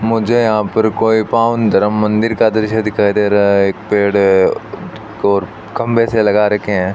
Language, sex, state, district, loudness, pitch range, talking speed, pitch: Hindi, male, Rajasthan, Bikaner, -13 LUFS, 100-110 Hz, 190 wpm, 105 Hz